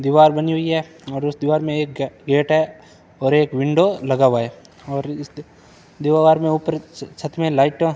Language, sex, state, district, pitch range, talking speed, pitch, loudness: Hindi, male, Rajasthan, Bikaner, 140-160 Hz, 195 wpm, 150 Hz, -19 LUFS